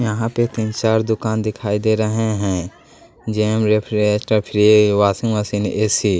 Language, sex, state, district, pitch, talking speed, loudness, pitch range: Hindi, male, Bihar, West Champaran, 110 Hz, 155 wpm, -18 LUFS, 105-110 Hz